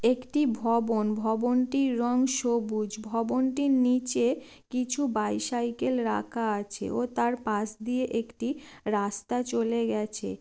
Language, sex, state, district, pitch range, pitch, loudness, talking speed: Bengali, female, West Bengal, Jalpaiguri, 220-255 Hz, 235 Hz, -28 LUFS, 110 wpm